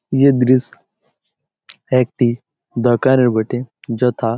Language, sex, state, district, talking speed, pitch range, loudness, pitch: Bengali, male, West Bengal, Malda, 95 wpm, 120-130 Hz, -16 LUFS, 125 Hz